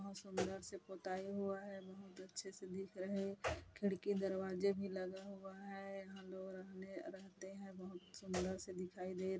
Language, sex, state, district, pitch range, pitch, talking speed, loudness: Hindi, female, Chhattisgarh, Kabirdham, 185-195 Hz, 190 Hz, 180 wpm, -46 LUFS